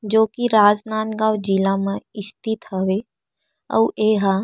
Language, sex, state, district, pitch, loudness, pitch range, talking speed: Chhattisgarhi, female, Chhattisgarh, Rajnandgaon, 215 Hz, -20 LUFS, 195-220 Hz, 135 wpm